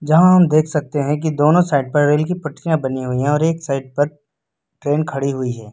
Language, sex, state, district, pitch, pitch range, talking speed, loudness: Hindi, male, Uttar Pradesh, Lucknow, 145 Hz, 135-155 Hz, 240 wpm, -17 LUFS